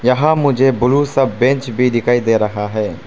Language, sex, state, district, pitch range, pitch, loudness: Hindi, male, Arunachal Pradesh, Papum Pare, 115-135 Hz, 125 Hz, -15 LUFS